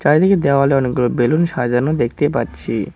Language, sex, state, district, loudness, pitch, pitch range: Bengali, male, West Bengal, Cooch Behar, -16 LUFS, 140 Hz, 125-150 Hz